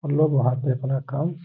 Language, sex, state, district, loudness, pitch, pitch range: Hindi, male, Bihar, Gaya, -23 LUFS, 140 Hz, 135-155 Hz